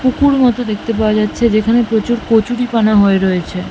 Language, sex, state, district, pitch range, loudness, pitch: Bengali, female, West Bengal, Malda, 215-240 Hz, -13 LUFS, 225 Hz